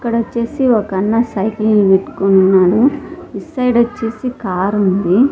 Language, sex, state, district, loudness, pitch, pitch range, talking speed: Telugu, female, Andhra Pradesh, Sri Satya Sai, -14 LUFS, 220 Hz, 195-240 Hz, 115 wpm